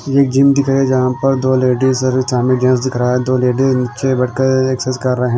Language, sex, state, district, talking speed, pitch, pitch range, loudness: Hindi, male, Himachal Pradesh, Shimla, 280 wpm, 130 Hz, 125-130 Hz, -14 LUFS